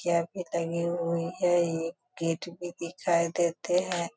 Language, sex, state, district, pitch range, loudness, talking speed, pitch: Hindi, female, Bihar, Sitamarhi, 170-175 Hz, -29 LUFS, 145 wpm, 170 Hz